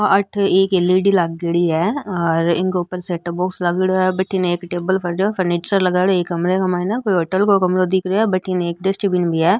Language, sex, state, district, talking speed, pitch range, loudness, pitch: Marwari, female, Rajasthan, Nagaur, 230 wpm, 175-190 Hz, -18 LUFS, 185 Hz